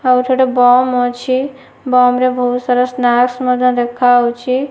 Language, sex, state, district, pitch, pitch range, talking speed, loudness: Odia, female, Odisha, Nuapada, 250 Hz, 245-255 Hz, 165 wpm, -13 LUFS